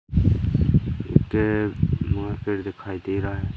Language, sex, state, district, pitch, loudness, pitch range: Hindi, male, Madhya Pradesh, Katni, 100 Hz, -24 LUFS, 100-105 Hz